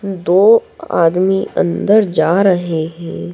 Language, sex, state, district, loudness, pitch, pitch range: Hindi, female, Madhya Pradesh, Dhar, -14 LUFS, 180 Hz, 165-195 Hz